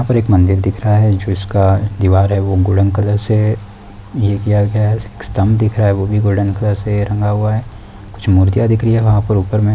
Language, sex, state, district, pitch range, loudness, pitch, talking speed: Hindi, male, Uttar Pradesh, Deoria, 100-105 Hz, -14 LUFS, 105 Hz, 245 wpm